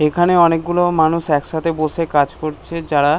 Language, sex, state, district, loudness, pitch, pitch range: Bengali, male, West Bengal, North 24 Parganas, -16 LUFS, 160 Hz, 150-170 Hz